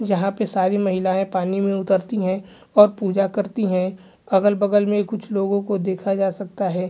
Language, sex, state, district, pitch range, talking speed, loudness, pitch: Hindi, male, Bihar, Vaishali, 190-205 Hz, 185 wpm, -21 LUFS, 195 Hz